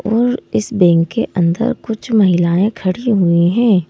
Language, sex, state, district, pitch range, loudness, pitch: Hindi, male, Madhya Pradesh, Bhopal, 175-225 Hz, -15 LUFS, 205 Hz